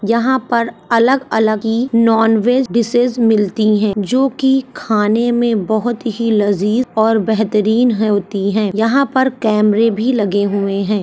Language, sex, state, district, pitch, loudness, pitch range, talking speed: Hindi, female, Uttar Pradesh, Ghazipur, 225 Hz, -15 LUFS, 210-240 Hz, 140 wpm